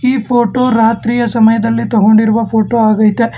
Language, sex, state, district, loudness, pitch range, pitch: Kannada, male, Karnataka, Bangalore, -11 LUFS, 220-235 Hz, 230 Hz